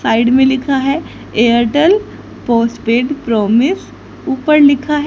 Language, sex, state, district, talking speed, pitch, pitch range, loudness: Hindi, female, Haryana, Charkhi Dadri, 120 wpm, 265 Hz, 235-295 Hz, -13 LUFS